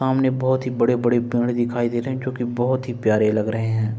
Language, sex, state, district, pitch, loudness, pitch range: Hindi, male, Uttar Pradesh, Jalaun, 120 Hz, -21 LUFS, 115-130 Hz